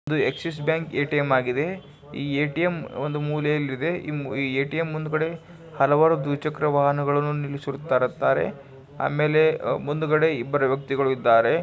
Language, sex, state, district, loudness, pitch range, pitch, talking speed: Kannada, male, Karnataka, Bijapur, -24 LUFS, 140-155 Hz, 145 Hz, 105 wpm